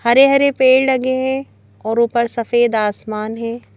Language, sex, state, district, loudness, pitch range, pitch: Hindi, female, Madhya Pradesh, Bhopal, -16 LUFS, 230-260 Hz, 240 Hz